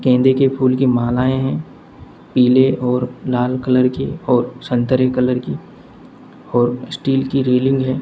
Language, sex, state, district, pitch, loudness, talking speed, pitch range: Hindi, male, Uttar Pradesh, Saharanpur, 130 Hz, -17 LUFS, 150 wpm, 125-130 Hz